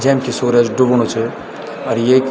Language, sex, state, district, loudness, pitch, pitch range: Garhwali, male, Uttarakhand, Tehri Garhwal, -15 LUFS, 125 Hz, 115-130 Hz